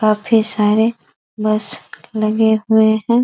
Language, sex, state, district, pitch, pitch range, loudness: Hindi, female, Bihar, East Champaran, 220 Hz, 215-225 Hz, -15 LUFS